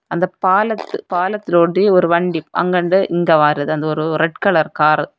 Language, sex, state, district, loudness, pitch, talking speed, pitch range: Tamil, female, Tamil Nadu, Kanyakumari, -16 LUFS, 175 Hz, 175 wpm, 155-185 Hz